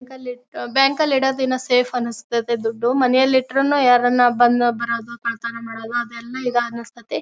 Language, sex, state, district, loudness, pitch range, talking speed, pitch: Kannada, female, Karnataka, Bellary, -19 LUFS, 235-260 Hz, 165 wpm, 245 Hz